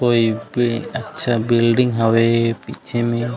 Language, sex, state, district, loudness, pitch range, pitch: Chhattisgarhi, male, Chhattisgarh, Raigarh, -18 LUFS, 115-120 Hz, 120 Hz